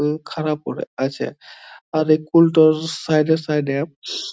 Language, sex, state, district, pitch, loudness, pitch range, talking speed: Bengali, male, West Bengal, Jhargram, 155 Hz, -19 LUFS, 150-160 Hz, 165 wpm